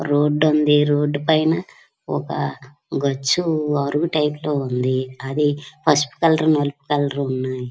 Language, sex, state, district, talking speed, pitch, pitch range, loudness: Telugu, female, Andhra Pradesh, Srikakulam, 125 wpm, 145 Hz, 140-155 Hz, -20 LUFS